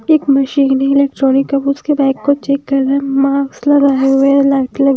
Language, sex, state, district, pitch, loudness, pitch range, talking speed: Hindi, female, Himachal Pradesh, Shimla, 275 Hz, -13 LUFS, 270-280 Hz, 205 wpm